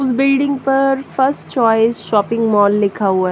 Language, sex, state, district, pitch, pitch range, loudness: Hindi, female, Haryana, Jhajjar, 230 Hz, 205-270 Hz, -15 LUFS